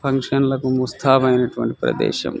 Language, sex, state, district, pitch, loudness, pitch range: Telugu, male, Telangana, Nalgonda, 130 Hz, -19 LUFS, 130-135 Hz